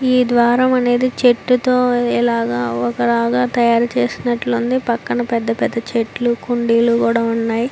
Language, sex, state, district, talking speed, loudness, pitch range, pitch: Telugu, female, Andhra Pradesh, Visakhapatnam, 140 wpm, -16 LUFS, 230-245 Hz, 235 Hz